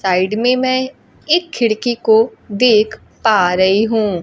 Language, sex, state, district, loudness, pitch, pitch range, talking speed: Hindi, female, Bihar, Kaimur, -15 LUFS, 220 Hz, 205-250 Hz, 140 wpm